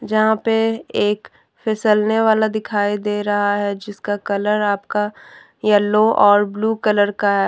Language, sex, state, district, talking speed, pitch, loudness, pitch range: Hindi, female, Jharkhand, Deoghar, 135 wpm, 210 Hz, -18 LUFS, 205-220 Hz